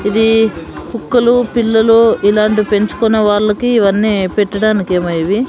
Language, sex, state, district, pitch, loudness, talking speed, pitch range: Telugu, female, Andhra Pradesh, Sri Satya Sai, 215 Hz, -12 LUFS, 100 wpm, 205-225 Hz